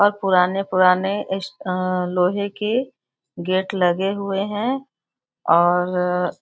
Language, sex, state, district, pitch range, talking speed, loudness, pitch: Hindi, female, Bihar, Muzaffarpur, 180-200 Hz, 110 wpm, -20 LUFS, 185 Hz